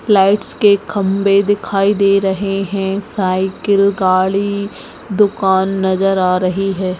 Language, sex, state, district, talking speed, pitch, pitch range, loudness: Hindi, female, Chhattisgarh, Bastar, 120 wpm, 195 Hz, 190-200 Hz, -15 LUFS